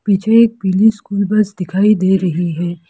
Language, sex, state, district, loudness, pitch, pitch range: Hindi, female, Arunachal Pradesh, Lower Dibang Valley, -14 LUFS, 200 Hz, 180-215 Hz